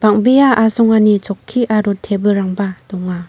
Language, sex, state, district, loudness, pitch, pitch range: Garo, female, Meghalaya, North Garo Hills, -14 LUFS, 205 Hz, 195-220 Hz